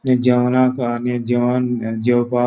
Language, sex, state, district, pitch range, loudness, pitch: Konkani, male, Goa, North and South Goa, 120-125 Hz, -18 LUFS, 125 Hz